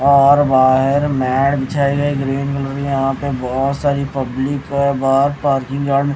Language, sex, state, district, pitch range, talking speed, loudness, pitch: Hindi, male, Odisha, Khordha, 135-140 Hz, 125 wpm, -16 LUFS, 140 Hz